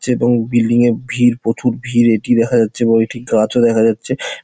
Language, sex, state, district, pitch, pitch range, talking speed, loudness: Bengali, male, West Bengal, Dakshin Dinajpur, 120 Hz, 115-120 Hz, 205 wpm, -15 LUFS